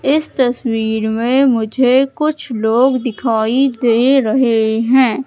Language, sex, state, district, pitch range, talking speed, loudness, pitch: Hindi, female, Madhya Pradesh, Katni, 225-265 Hz, 115 wpm, -14 LUFS, 245 Hz